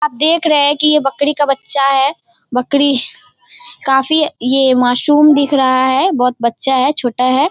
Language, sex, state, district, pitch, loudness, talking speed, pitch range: Hindi, female, Bihar, Darbhanga, 280 Hz, -13 LUFS, 175 wpm, 260-300 Hz